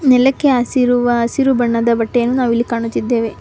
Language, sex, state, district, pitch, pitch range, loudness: Kannada, female, Karnataka, Bangalore, 240 Hz, 235-260 Hz, -15 LUFS